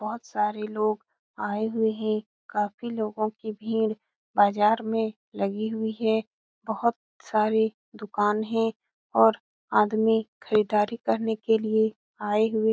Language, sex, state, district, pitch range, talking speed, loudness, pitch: Hindi, female, Bihar, Lakhisarai, 210-225 Hz, 130 wpm, -26 LUFS, 220 Hz